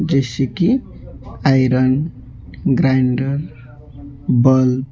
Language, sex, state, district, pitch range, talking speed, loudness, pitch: Hindi, male, West Bengal, Alipurduar, 125-135 Hz, 75 wpm, -17 LUFS, 130 Hz